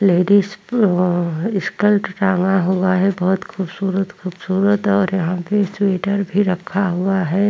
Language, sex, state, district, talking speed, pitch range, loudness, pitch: Hindi, female, Chhattisgarh, Korba, 145 wpm, 185-200 Hz, -18 LUFS, 195 Hz